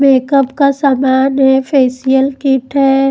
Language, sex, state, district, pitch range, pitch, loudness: Hindi, female, Chandigarh, Chandigarh, 265-275 Hz, 270 Hz, -12 LUFS